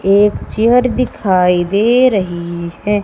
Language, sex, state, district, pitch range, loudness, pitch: Hindi, female, Madhya Pradesh, Umaria, 180-230 Hz, -14 LUFS, 200 Hz